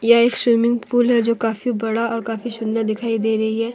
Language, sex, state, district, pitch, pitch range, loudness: Hindi, female, Jharkhand, Deoghar, 230 Hz, 225-235 Hz, -19 LUFS